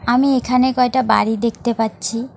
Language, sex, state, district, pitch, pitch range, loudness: Bengali, female, West Bengal, Alipurduar, 240 Hz, 230-255 Hz, -17 LUFS